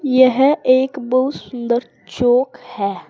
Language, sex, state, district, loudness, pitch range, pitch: Hindi, female, Uttar Pradesh, Saharanpur, -16 LUFS, 245-260 Hz, 255 Hz